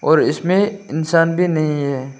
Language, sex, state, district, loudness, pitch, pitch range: Hindi, male, Arunachal Pradesh, Lower Dibang Valley, -17 LUFS, 165 Hz, 145-180 Hz